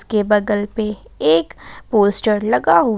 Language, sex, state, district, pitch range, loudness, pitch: Hindi, female, Jharkhand, Ranchi, 170-215 Hz, -17 LUFS, 210 Hz